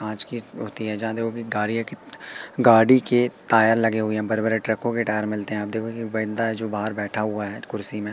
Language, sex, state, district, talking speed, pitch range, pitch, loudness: Hindi, male, Madhya Pradesh, Katni, 215 wpm, 105-115 Hz, 110 Hz, -22 LUFS